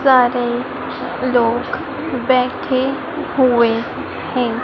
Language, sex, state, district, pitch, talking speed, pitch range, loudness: Hindi, female, Madhya Pradesh, Dhar, 250 Hz, 65 wpm, 245-270 Hz, -18 LUFS